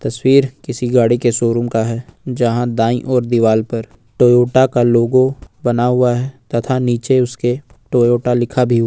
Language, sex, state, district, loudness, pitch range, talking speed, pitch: Hindi, male, Jharkhand, Ranchi, -15 LUFS, 115-125 Hz, 160 wpm, 120 Hz